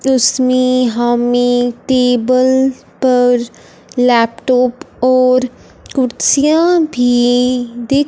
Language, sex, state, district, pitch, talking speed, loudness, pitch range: Hindi, female, Punjab, Fazilka, 250 Hz, 65 wpm, -13 LUFS, 245-260 Hz